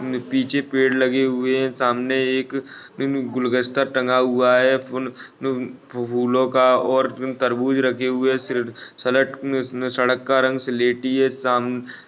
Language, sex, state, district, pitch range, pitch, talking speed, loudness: Hindi, male, Chhattisgarh, Bastar, 125-130 Hz, 130 Hz, 125 wpm, -20 LUFS